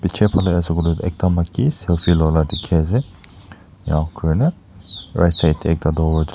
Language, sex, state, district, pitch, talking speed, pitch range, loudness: Nagamese, male, Nagaland, Dimapur, 85 Hz, 170 wpm, 80-95 Hz, -18 LUFS